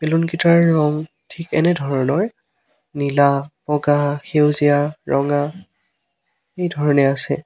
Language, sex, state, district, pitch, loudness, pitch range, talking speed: Assamese, male, Assam, Sonitpur, 150 Hz, -18 LUFS, 145-165 Hz, 90 wpm